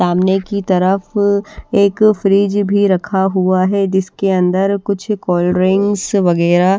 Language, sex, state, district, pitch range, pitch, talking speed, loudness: Hindi, female, Bihar, West Champaran, 185-200 Hz, 195 Hz, 135 wpm, -14 LUFS